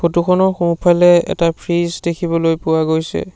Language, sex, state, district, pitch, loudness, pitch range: Assamese, male, Assam, Sonitpur, 170 Hz, -15 LUFS, 165-175 Hz